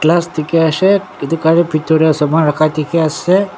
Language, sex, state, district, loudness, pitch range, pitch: Nagamese, male, Nagaland, Dimapur, -13 LUFS, 155-170 Hz, 160 Hz